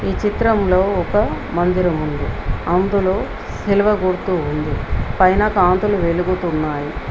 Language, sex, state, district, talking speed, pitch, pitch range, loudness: Telugu, female, Telangana, Mahabubabad, 100 wpm, 185 Hz, 160-200 Hz, -18 LUFS